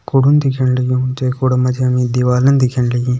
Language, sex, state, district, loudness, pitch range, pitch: Hindi, male, Uttarakhand, Tehri Garhwal, -15 LUFS, 125-130 Hz, 125 Hz